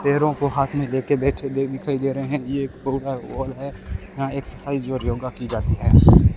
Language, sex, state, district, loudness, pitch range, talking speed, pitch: Hindi, male, Rajasthan, Bikaner, -22 LUFS, 120-140 Hz, 215 wpm, 135 Hz